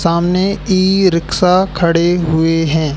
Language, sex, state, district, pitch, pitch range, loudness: Hindi, male, Madhya Pradesh, Katni, 175 Hz, 165-190 Hz, -13 LUFS